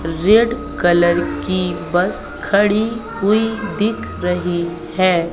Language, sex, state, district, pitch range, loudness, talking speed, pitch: Hindi, female, Madhya Pradesh, Katni, 175-215 Hz, -17 LUFS, 100 wpm, 185 Hz